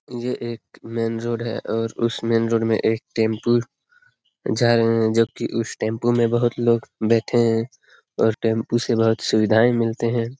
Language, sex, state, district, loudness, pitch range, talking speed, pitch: Hindi, male, Bihar, Lakhisarai, -21 LUFS, 115-120 Hz, 185 wpm, 115 Hz